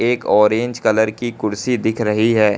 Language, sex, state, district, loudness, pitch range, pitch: Hindi, male, Uttar Pradesh, Lucknow, -17 LUFS, 105-120 Hz, 110 Hz